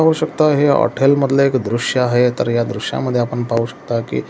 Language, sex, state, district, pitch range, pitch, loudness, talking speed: Marathi, male, Maharashtra, Solapur, 120-140 Hz, 125 Hz, -16 LUFS, 210 wpm